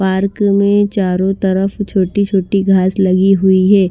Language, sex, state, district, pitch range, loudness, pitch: Hindi, female, Maharashtra, Washim, 190-200 Hz, -13 LUFS, 195 Hz